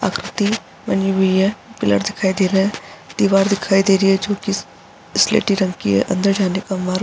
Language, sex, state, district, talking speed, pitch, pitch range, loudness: Hindi, female, Bihar, Araria, 215 wpm, 195 Hz, 190-200 Hz, -18 LUFS